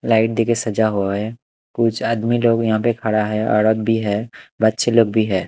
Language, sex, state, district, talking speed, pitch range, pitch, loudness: Hindi, male, Punjab, Kapurthala, 210 wpm, 110-115 Hz, 110 Hz, -18 LUFS